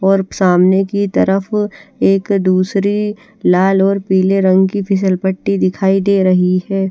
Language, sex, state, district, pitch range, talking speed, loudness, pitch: Hindi, female, Chandigarh, Chandigarh, 185-200 Hz, 150 wpm, -14 LUFS, 195 Hz